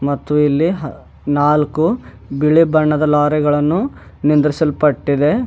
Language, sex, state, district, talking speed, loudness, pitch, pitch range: Kannada, male, Karnataka, Bidar, 90 wpm, -15 LUFS, 150 Hz, 145-155 Hz